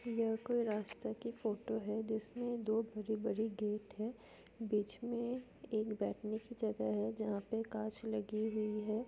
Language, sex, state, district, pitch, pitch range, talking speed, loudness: Hindi, female, Jharkhand, Sahebganj, 220 Hz, 215-230 Hz, 160 wpm, -40 LUFS